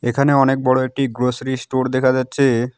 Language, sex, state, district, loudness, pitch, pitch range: Bengali, male, West Bengal, Alipurduar, -18 LUFS, 130 Hz, 125-135 Hz